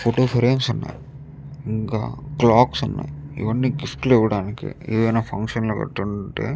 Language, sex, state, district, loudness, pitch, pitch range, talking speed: Telugu, male, Andhra Pradesh, Chittoor, -21 LUFS, 125 Hz, 110-140 Hz, 135 wpm